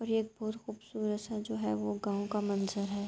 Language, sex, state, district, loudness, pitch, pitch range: Urdu, female, Andhra Pradesh, Anantapur, -35 LUFS, 205 Hz, 200-215 Hz